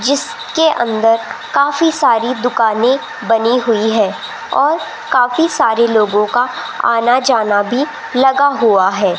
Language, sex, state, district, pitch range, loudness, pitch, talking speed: Hindi, female, Rajasthan, Jaipur, 225-285 Hz, -14 LUFS, 245 Hz, 125 wpm